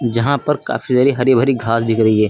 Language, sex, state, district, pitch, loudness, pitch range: Hindi, male, Uttar Pradesh, Lucknow, 125 Hz, -16 LUFS, 115-135 Hz